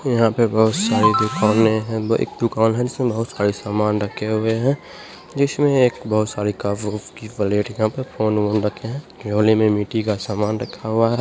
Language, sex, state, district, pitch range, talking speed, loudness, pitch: Hindi, male, Bihar, Gopalganj, 105-120 Hz, 205 wpm, -20 LUFS, 110 Hz